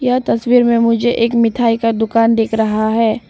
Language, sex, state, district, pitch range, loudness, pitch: Hindi, female, Arunachal Pradesh, Papum Pare, 225-235 Hz, -14 LUFS, 230 Hz